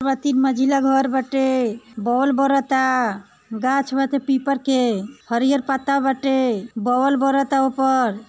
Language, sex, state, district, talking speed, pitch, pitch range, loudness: Bhojpuri, female, Bihar, East Champaran, 130 wpm, 265 Hz, 245-275 Hz, -20 LUFS